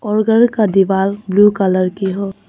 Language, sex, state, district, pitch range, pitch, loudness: Hindi, female, Arunachal Pradesh, Papum Pare, 190-210 Hz, 195 Hz, -14 LUFS